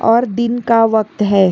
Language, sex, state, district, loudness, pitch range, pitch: Hindi, female, Karnataka, Bangalore, -14 LUFS, 205-235 Hz, 225 Hz